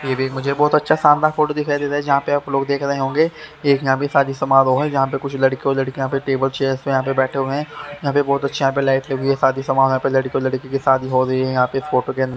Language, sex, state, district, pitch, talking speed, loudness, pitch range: Hindi, male, Haryana, Charkhi Dadri, 135 Hz, 310 wpm, -18 LUFS, 135-145 Hz